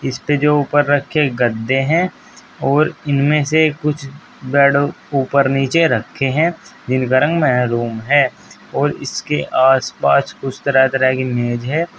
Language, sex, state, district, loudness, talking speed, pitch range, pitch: Hindi, male, Uttar Pradesh, Saharanpur, -16 LUFS, 145 wpm, 130-150 Hz, 140 Hz